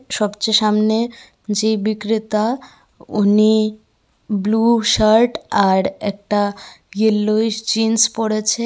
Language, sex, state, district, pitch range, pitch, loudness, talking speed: Bengali, female, Tripura, West Tripura, 210-225 Hz, 215 Hz, -17 LUFS, 85 wpm